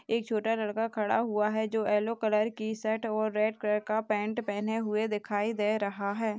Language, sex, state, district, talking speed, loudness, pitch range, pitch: Hindi, female, Goa, North and South Goa, 205 wpm, -30 LUFS, 210-220 Hz, 215 Hz